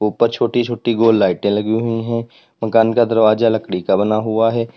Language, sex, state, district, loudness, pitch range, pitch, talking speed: Hindi, male, Uttar Pradesh, Lalitpur, -16 LUFS, 110-115 Hz, 115 Hz, 200 wpm